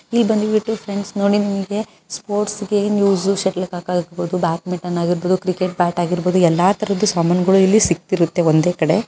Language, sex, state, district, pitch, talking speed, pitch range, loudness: Kannada, female, Karnataka, Bijapur, 185 Hz, 75 wpm, 175-205 Hz, -18 LUFS